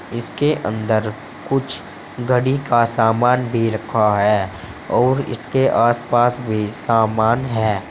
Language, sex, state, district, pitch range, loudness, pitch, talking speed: Hindi, male, Uttar Pradesh, Saharanpur, 110-125 Hz, -18 LUFS, 115 Hz, 120 wpm